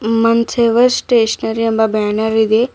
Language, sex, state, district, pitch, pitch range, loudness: Kannada, female, Karnataka, Bidar, 225 Hz, 220-235 Hz, -14 LUFS